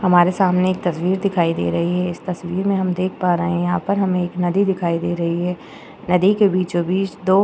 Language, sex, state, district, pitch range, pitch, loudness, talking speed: Hindi, female, Uttar Pradesh, Jyotiba Phule Nagar, 175-190 Hz, 180 Hz, -19 LUFS, 250 wpm